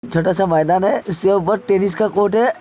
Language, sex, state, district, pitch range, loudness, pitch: Hindi, male, Uttar Pradesh, Hamirpur, 185-210 Hz, -17 LUFS, 195 Hz